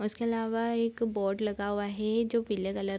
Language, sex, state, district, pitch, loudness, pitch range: Hindi, female, Bihar, Sitamarhi, 215 Hz, -31 LUFS, 205-230 Hz